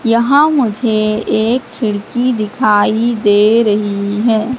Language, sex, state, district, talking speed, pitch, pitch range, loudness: Hindi, female, Madhya Pradesh, Katni, 105 wpm, 220 Hz, 210-240 Hz, -13 LUFS